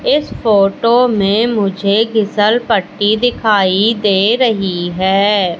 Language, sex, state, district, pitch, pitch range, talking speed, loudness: Hindi, female, Madhya Pradesh, Katni, 210 Hz, 195-230 Hz, 105 wpm, -13 LUFS